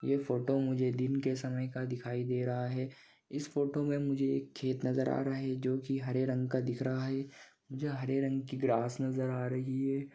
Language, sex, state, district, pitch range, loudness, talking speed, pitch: Hindi, male, Jharkhand, Sahebganj, 130-135 Hz, -34 LUFS, 220 wpm, 130 Hz